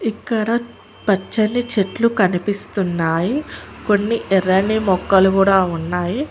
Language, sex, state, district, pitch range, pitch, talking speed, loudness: Telugu, female, Telangana, Mahabubabad, 185-225 Hz, 200 Hz, 85 wpm, -18 LUFS